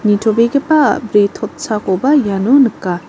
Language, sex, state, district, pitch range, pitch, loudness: Garo, female, Meghalaya, North Garo Hills, 205-275 Hz, 225 Hz, -13 LUFS